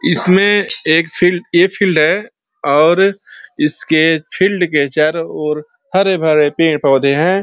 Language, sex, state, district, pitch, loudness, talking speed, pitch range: Hindi, male, Uttar Pradesh, Ghazipur, 165 Hz, -13 LUFS, 120 wpm, 150-190 Hz